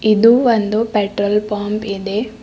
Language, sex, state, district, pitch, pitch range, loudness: Kannada, female, Karnataka, Bidar, 210 Hz, 205-225 Hz, -16 LUFS